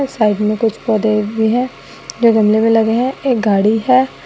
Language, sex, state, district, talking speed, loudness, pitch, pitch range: Hindi, female, Assam, Sonitpur, 195 wpm, -14 LUFS, 225 Hz, 215-245 Hz